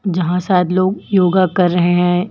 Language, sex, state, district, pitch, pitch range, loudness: Hindi, female, Chhattisgarh, Raipur, 180 Hz, 180-185 Hz, -15 LUFS